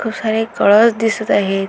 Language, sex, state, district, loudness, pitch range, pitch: Marathi, female, Maharashtra, Aurangabad, -14 LUFS, 200-225 Hz, 220 Hz